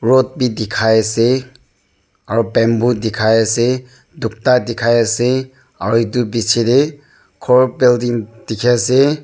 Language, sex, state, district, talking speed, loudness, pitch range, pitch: Nagamese, male, Nagaland, Dimapur, 115 wpm, -15 LUFS, 115-130 Hz, 120 Hz